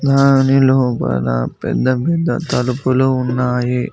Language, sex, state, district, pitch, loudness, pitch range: Telugu, male, Telangana, Mahabubabad, 130 Hz, -15 LUFS, 125-135 Hz